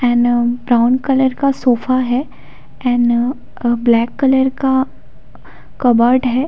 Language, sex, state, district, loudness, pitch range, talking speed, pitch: Hindi, female, Chhattisgarh, Bilaspur, -15 LUFS, 240-265 Hz, 110 wpm, 250 Hz